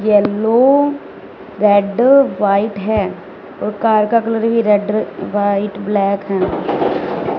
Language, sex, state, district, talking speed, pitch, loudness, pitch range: Hindi, female, Punjab, Fazilka, 105 wpm, 210 Hz, -15 LUFS, 200-225 Hz